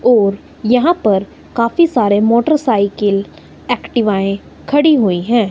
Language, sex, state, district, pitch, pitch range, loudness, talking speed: Hindi, female, Himachal Pradesh, Shimla, 230 Hz, 200-265 Hz, -14 LUFS, 110 wpm